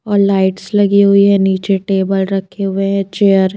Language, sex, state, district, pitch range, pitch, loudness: Hindi, female, Himachal Pradesh, Shimla, 190-200 Hz, 195 Hz, -13 LUFS